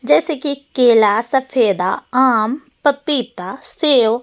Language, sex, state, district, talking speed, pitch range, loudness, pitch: Hindi, female, Delhi, New Delhi, 130 wpm, 220-280 Hz, -15 LUFS, 260 Hz